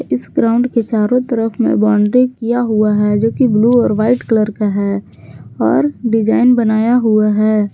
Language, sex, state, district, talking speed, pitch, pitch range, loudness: Hindi, female, Jharkhand, Garhwa, 180 wpm, 225 Hz, 215-240 Hz, -14 LUFS